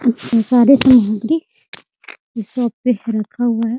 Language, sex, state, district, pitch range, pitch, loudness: Hindi, female, Bihar, Muzaffarpur, 225-250 Hz, 235 Hz, -15 LUFS